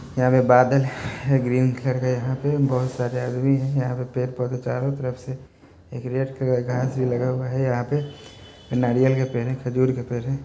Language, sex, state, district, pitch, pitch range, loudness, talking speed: Hindi, male, Bihar, Muzaffarpur, 125 Hz, 125-130 Hz, -23 LUFS, 215 wpm